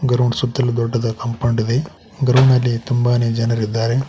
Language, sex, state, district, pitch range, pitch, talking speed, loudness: Kannada, male, Karnataka, Koppal, 115-125 Hz, 120 Hz, 130 wpm, -18 LUFS